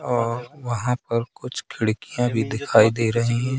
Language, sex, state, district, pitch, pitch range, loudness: Hindi, male, Madhya Pradesh, Katni, 120 Hz, 115-120 Hz, -23 LUFS